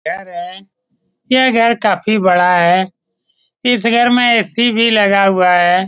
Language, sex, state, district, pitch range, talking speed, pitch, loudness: Hindi, male, Bihar, Saran, 185-235 Hz, 165 wpm, 215 Hz, -12 LUFS